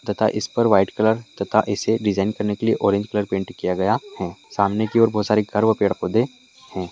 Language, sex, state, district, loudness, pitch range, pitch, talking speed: Hindi, male, Maharashtra, Solapur, -21 LUFS, 100-115 Hz, 105 Hz, 225 wpm